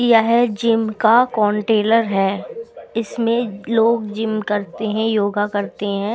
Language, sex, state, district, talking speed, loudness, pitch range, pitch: Hindi, female, Bihar, Patna, 125 wpm, -18 LUFS, 210-230 Hz, 220 Hz